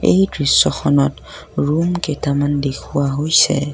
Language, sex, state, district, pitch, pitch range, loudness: Assamese, male, Assam, Kamrup Metropolitan, 145 Hz, 140-160 Hz, -16 LUFS